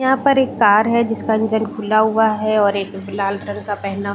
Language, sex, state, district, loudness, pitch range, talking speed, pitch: Hindi, female, Chhattisgarh, Bilaspur, -17 LUFS, 200-220 Hz, 230 wpm, 215 Hz